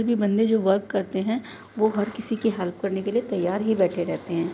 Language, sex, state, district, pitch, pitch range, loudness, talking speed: Hindi, female, Uttar Pradesh, Muzaffarnagar, 205 Hz, 190-225 Hz, -24 LUFS, 250 wpm